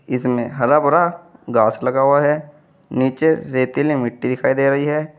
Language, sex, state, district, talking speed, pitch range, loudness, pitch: Hindi, male, Uttar Pradesh, Saharanpur, 160 wpm, 125-150 Hz, -18 LUFS, 140 Hz